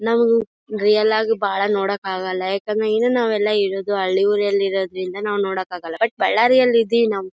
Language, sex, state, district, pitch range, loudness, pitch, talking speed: Kannada, female, Karnataka, Bellary, 195-225 Hz, -19 LUFS, 205 Hz, 165 wpm